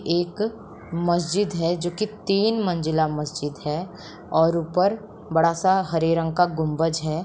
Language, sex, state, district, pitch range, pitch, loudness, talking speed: Hindi, female, Bihar, Sitamarhi, 160-190 Hz, 175 Hz, -23 LUFS, 140 wpm